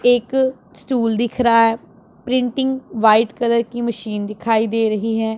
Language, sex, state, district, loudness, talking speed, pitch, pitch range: Hindi, female, Punjab, Pathankot, -18 LUFS, 155 wpm, 230 Hz, 220-245 Hz